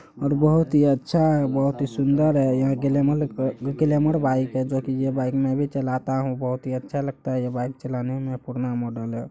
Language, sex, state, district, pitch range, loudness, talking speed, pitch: Hindi, male, Bihar, Araria, 130-140 Hz, -23 LUFS, 220 wpm, 135 Hz